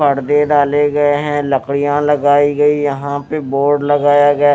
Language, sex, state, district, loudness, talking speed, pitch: Hindi, male, Haryana, Rohtak, -14 LUFS, 160 wpm, 145 Hz